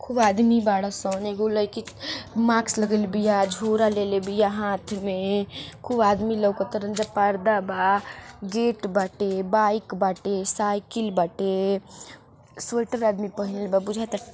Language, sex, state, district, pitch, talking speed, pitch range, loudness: Bhojpuri, female, Uttar Pradesh, Ghazipur, 205 Hz, 135 wpm, 195-220 Hz, -24 LUFS